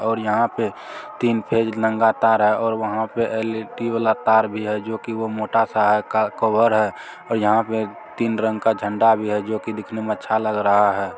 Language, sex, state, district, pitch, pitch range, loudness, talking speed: Maithili, male, Bihar, Supaul, 110 Hz, 110-115 Hz, -20 LUFS, 210 wpm